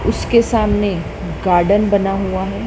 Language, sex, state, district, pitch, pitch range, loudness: Hindi, male, Madhya Pradesh, Dhar, 200 Hz, 190-210 Hz, -16 LUFS